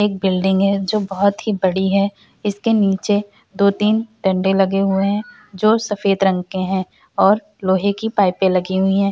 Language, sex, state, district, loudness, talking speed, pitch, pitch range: Hindi, female, Uttar Pradesh, Varanasi, -18 LUFS, 180 wpm, 195 Hz, 190-210 Hz